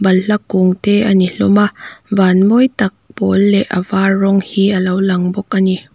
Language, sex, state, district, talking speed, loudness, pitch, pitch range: Mizo, female, Mizoram, Aizawl, 220 wpm, -13 LUFS, 195 Hz, 185-205 Hz